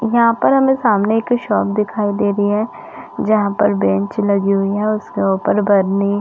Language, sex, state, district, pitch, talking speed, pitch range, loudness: Hindi, female, Chhattisgarh, Rajnandgaon, 205 Hz, 195 wpm, 200-215 Hz, -16 LUFS